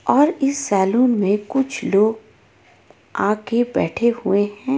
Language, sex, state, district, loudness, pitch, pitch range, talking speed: Hindi, female, Jharkhand, Ranchi, -19 LUFS, 230 Hz, 205-265 Hz, 125 wpm